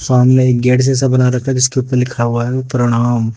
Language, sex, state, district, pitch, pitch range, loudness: Hindi, male, Haryana, Jhajjar, 125 Hz, 120-130 Hz, -13 LUFS